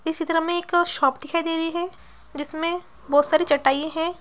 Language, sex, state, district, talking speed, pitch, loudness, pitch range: Hindi, female, Bihar, Gaya, 200 wpm, 325 Hz, -22 LUFS, 295-340 Hz